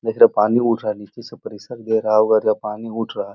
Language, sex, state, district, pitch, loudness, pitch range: Hindi, male, Uttar Pradesh, Muzaffarnagar, 110 Hz, -18 LUFS, 110-115 Hz